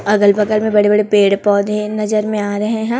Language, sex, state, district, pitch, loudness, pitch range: Hindi, female, Chhattisgarh, Raipur, 210 Hz, -14 LUFS, 205-215 Hz